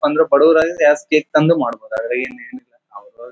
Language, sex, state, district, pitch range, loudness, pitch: Kannada, male, Karnataka, Bellary, 145-225 Hz, -15 LUFS, 155 Hz